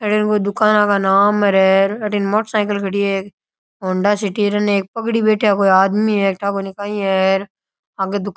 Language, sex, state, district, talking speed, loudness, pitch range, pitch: Rajasthani, male, Rajasthan, Nagaur, 195 wpm, -16 LUFS, 195-210 Hz, 200 Hz